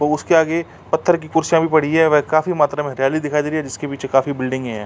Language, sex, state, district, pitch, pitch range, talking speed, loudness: Hindi, male, Uttar Pradesh, Jalaun, 150 Hz, 140-160 Hz, 270 wpm, -18 LUFS